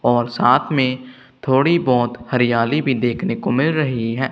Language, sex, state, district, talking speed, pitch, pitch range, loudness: Hindi, male, Punjab, Kapurthala, 165 wpm, 130 Hz, 120-140 Hz, -18 LUFS